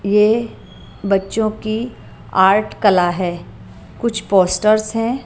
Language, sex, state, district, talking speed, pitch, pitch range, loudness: Hindi, female, Punjab, Pathankot, 105 wpm, 205 Hz, 185-220 Hz, -17 LUFS